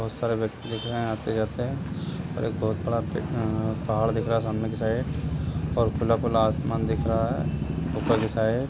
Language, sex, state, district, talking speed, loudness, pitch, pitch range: Hindi, male, Bihar, East Champaran, 180 wpm, -27 LUFS, 115 Hz, 110-120 Hz